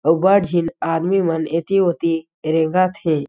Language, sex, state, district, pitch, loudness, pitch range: Chhattisgarhi, male, Chhattisgarh, Jashpur, 165 Hz, -18 LUFS, 160-185 Hz